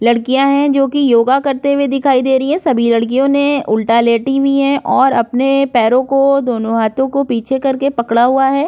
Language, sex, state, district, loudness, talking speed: Hindi, female, Uttar Pradesh, Budaun, -13 LUFS, 205 wpm